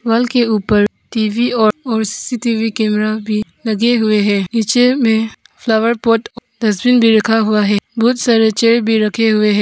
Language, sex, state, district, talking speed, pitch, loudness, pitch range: Hindi, female, Arunachal Pradesh, Papum Pare, 175 wpm, 225 Hz, -14 LUFS, 215-235 Hz